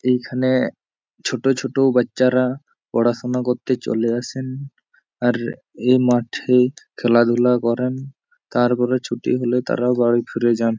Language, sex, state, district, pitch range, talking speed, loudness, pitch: Bengali, male, West Bengal, Jhargram, 120-130 Hz, 110 wpm, -20 LUFS, 125 Hz